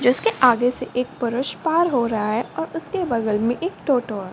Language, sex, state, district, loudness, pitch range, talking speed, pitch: Hindi, female, Uttar Pradesh, Ghazipur, -21 LUFS, 230-320 Hz, 235 wpm, 250 Hz